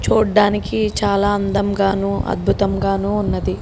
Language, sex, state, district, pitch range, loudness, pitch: Telugu, female, Telangana, Karimnagar, 195-205 Hz, -18 LUFS, 200 Hz